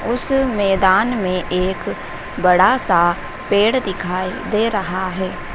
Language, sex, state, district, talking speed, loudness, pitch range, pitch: Hindi, female, Madhya Pradesh, Dhar, 120 wpm, -18 LUFS, 185-225 Hz, 190 Hz